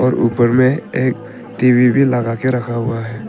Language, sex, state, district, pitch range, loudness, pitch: Hindi, male, Arunachal Pradesh, Papum Pare, 120-125 Hz, -15 LUFS, 125 Hz